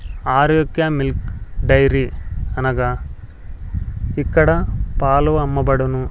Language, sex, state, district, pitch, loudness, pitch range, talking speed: Telugu, male, Andhra Pradesh, Sri Satya Sai, 135 Hz, -18 LUFS, 125-140 Hz, 70 wpm